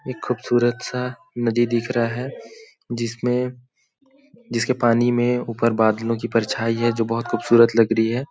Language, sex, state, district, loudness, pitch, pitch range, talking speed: Hindi, male, Chhattisgarh, Balrampur, -21 LUFS, 120 Hz, 115-125 Hz, 160 wpm